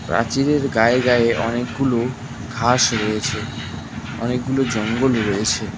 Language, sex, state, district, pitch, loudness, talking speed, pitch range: Bengali, male, West Bengal, Cooch Behar, 115 Hz, -19 LUFS, 95 wpm, 110-125 Hz